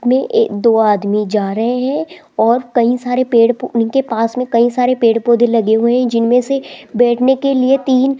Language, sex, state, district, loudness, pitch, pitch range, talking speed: Hindi, female, Rajasthan, Jaipur, -14 LUFS, 245 Hz, 230-255 Hz, 205 wpm